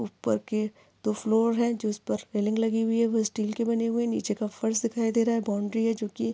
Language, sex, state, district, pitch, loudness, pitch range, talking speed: Hindi, female, Maharashtra, Aurangabad, 225 Hz, -27 LUFS, 210-230 Hz, 255 wpm